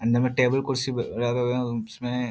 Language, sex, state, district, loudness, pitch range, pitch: Hindi, male, Bihar, Jahanabad, -25 LUFS, 120-125 Hz, 125 Hz